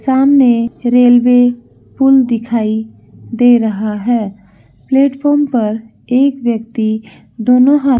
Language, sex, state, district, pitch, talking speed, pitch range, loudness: Hindi, female, Bihar, Saharsa, 245 Hz, 105 wpm, 225-265 Hz, -12 LUFS